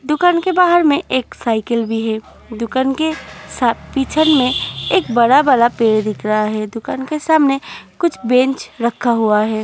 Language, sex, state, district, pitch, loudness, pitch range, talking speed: Hindi, female, Uttar Pradesh, Hamirpur, 250 Hz, -16 LUFS, 225-300 Hz, 180 wpm